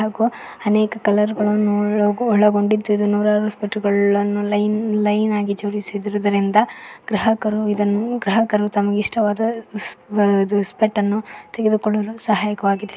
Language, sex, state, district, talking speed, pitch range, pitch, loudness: Kannada, female, Karnataka, Koppal, 95 wpm, 205-215 Hz, 210 Hz, -19 LUFS